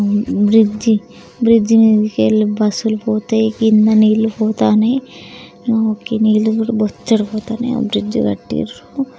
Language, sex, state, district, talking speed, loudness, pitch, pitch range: Telugu, female, Telangana, Karimnagar, 90 wpm, -15 LUFS, 220 Hz, 215-225 Hz